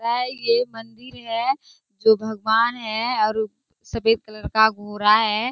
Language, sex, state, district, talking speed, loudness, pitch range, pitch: Hindi, female, Bihar, Kishanganj, 140 wpm, -21 LUFS, 220-235 Hz, 225 Hz